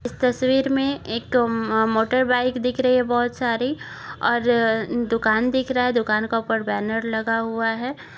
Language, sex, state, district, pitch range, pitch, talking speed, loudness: Hindi, female, Chhattisgarh, Jashpur, 225-250 Hz, 240 Hz, 175 wpm, -21 LUFS